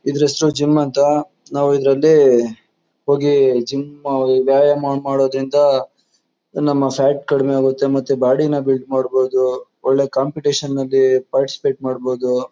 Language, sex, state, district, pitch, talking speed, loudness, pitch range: Kannada, male, Karnataka, Chamarajanagar, 135 Hz, 115 wpm, -16 LUFS, 130-145 Hz